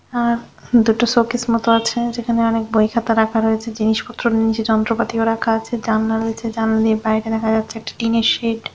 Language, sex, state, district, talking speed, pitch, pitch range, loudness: Bengali, female, West Bengal, North 24 Parganas, 185 wpm, 225 Hz, 220-235 Hz, -18 LUFS